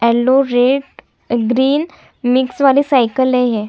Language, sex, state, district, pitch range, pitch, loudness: Hindi, female, Chhattisgarh, Kabirdham, 245-270 Hz, 255 Hz, -14 LUFS